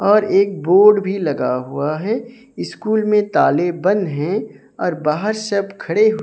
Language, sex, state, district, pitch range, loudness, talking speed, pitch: Hindi, male, Odisha, Sambalpur, 160-215 Hz, -17 LUFS, 155 wpm, 200 Hz